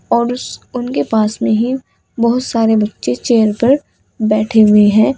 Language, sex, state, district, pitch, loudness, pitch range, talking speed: Hindi, female, Uttar Pradesh, Saharanpur, 225 Hz, -14 LUFS, 215-245 Hz, 160 wpm